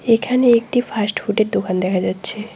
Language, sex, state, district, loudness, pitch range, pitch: Bengali, female, West Bengal, Cooch Behar, -17 LUFS, 210-245 Hz, 220 Hz